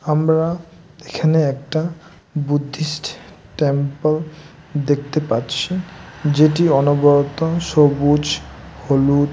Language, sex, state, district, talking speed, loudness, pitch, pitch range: Bengali, male, West Bengal, Dakshin Dinajpur, 70 wpm, -18 LUFS, 150 Hz, 140-160 Hz